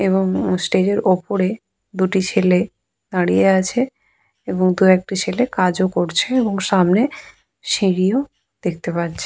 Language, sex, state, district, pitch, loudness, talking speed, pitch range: Bengali, female, West Bengal, Purulia, 190 Hz, -18 LUFS, 130 wpm, 185-210 Hz